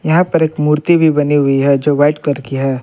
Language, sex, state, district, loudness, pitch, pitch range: Hindi, male, Jharkhand, Palamu, -13 LUFS, 150 Hz, 140-160 Hz